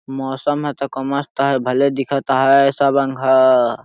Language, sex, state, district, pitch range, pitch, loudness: Sadri, male, Chhattisgarh, Jashpur, 135-140 Hz, 135 Hz, -17 LUFS